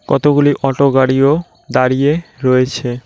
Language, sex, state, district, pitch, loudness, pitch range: Bengali, male, West Bengal, Cooch Behar, 135 Hz, -14 LUFS, 130-145 Hz